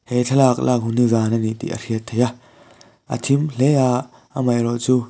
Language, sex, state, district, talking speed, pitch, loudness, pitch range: Mizo, male, Mizoram, Aizawl, 200 wpm, 125 Hz, -19 LUFS, 115-130 Hz